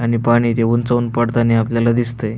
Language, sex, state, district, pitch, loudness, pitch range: Marathi, male, Maharashtra, Aurangabad, 115 Hz, -16 LUFS, 115-120 Hz